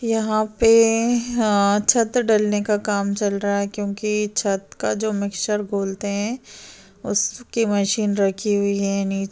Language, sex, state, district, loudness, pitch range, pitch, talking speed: Hindi, female, Maharashtra, Chandrapur, -21 LUFS, 200-220 Hz, 210 Hz, 135 wpm